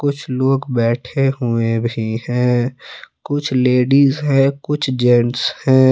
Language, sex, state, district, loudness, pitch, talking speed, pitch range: Hindi, male, Jharkhand, Palamu, -17 LUFS, 130 Hz, 120 wpm, 120-135 Hz